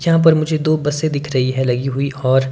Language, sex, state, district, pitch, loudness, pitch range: Hindi, male, Himachal Pradesh, Shimla, 145 Hz, -17 LUFS, 130-155 Hz